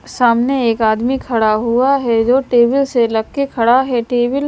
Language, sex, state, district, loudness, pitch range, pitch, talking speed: Hindi, female, Himachal Pradesh, Shimla, -14 LUFS, 230-265 Hz, 240 Hz, 200 wpm